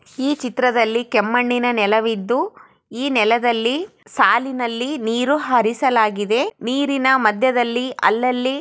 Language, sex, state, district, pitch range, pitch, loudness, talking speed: Kannada, female, Karnataka, Chamarajanagar, 230-265 Hz, 245 Hz, -18 LUFS, 90 wpm